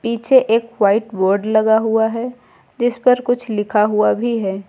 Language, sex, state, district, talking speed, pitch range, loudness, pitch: Hindi, female, Uttar Pradesh, Lucknow, 180 wpm, 210-240 Hz, -16 LUFS, 225 Hz